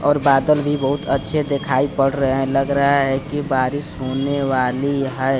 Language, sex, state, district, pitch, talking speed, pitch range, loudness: Hindi, male, Bihar, Kaimur, 140 Hz, 190 wpm, 135-145 Hz, -19 LUFS